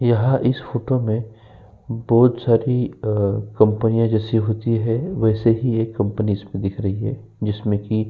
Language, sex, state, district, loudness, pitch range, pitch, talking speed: Hindi, male, Uttar Pradesh, Jyotiba Phule Nagar, -20 LUFS, 105-120 Hz, 110 Hz, 155 wpm